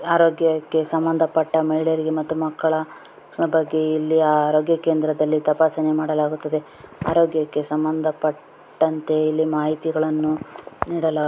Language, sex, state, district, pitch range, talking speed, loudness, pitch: Kannada, female, Karnataka, Dakshina Kannada, 155-160 Hz, 105 wpm, -21 LUFS, 155 Hz